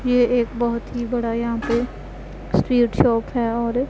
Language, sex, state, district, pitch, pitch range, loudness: Hindi, female, Punjab, Pathankot, 240 Hz, 235-245 Hz, -21 LUFS